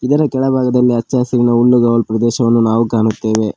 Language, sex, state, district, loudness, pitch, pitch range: Kannada, male, Karnataka, Koppal, -13 LUFS, 120 Hz, 115-125 Hz